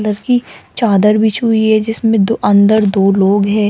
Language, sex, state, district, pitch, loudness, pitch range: Hindi, female, Rajasthan, Jaipur, 215 Hz, -12 LUFS, 205-225 Hz